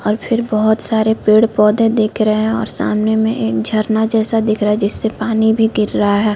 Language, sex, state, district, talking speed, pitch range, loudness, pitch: Hindi, female, Chhattisgarh, Korba, 215 wpm, 210-220 Hz, -15 LUFS, 220 Hz